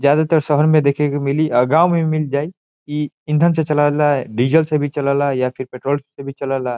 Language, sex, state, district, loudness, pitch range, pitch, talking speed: Bhojpuri, male, Bihar, Saran, -17 LUFS, 140-155 Hz, 145 Hz, 250 wpm